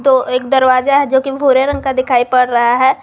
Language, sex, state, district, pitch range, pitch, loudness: Hindi, female, Jharkhand, Garhwa, 255-270 Hz, 260 Hz, -13 LUFS